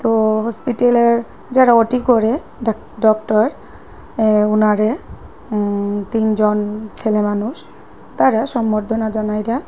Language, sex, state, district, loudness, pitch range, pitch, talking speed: Bengali, female, Assam, Hailakandi, -17 LUFS, 215-235 Hz, 220 Hz, 95 wpm